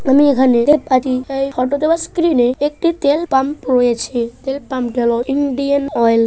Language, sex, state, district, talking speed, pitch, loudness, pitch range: Bengali, female, West Bengal, Paschim Medinipur, 180 wpm, 270 Hz, -16 LUFS, 250-285 Hz